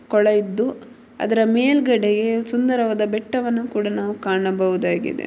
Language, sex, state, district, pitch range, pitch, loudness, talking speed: Kannada, female, Karnataka, Mysore, 210-240 Hz, 225 Hz, -20 LUFS, 125 wpm